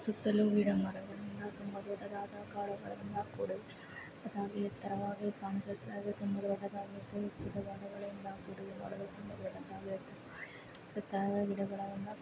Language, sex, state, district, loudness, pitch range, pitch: Kannada, female, Karnataka, Chamarajanagar, -40 LUFS, 200-205 Hz, 200 Hz